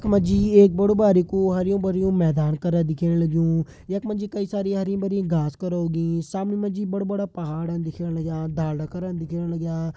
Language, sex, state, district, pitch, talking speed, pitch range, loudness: Hindi, male, Uttarakhand, Uttarkashi, 180 Hz, 195 wpm, 165-195 Hz, -23 LUFS